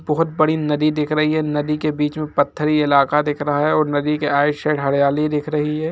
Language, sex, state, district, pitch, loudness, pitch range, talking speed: Hindi, male, Jharkhand, Jamtara, 150 Hz, -18 LUFS, 145-155 Hz, 245 wpm